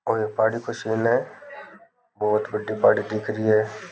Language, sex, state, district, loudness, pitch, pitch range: Rajasthani, male, Rajasthan, Nagaur, -23 LUFS, 110 Hz, 105-110 Hz